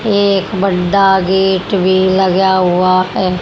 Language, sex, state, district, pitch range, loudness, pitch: Hindi, male, Haryana, Jhajjar, 185-195 Hz, -12 LUFS, 190 Hz